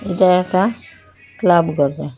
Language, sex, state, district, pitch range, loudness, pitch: Bengali, female, Assam, Hailakandi, 140-185 Hz, -16 LUFS, 175 Hz